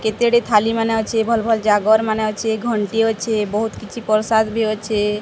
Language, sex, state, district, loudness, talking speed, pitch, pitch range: Odia, female, Odisha, Sambalpur, -18 LUFS, 195 wpm, 220 Hz, 215-225 Hz